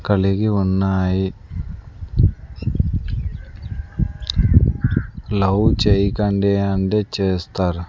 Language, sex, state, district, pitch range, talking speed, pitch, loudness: Telugu, male, Andhra Pradesh, Sri Satya Sai, 90-100 Hz, 45 wpm, 95 Hz, -19 LUFS